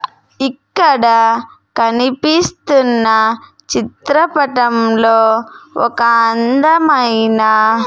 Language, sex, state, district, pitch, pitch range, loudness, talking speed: Telugu, female, Andhra Pradesh, Sri Satya Sai, 235 Hz, 225-275 Hz, -12 LUFS, 40 wpm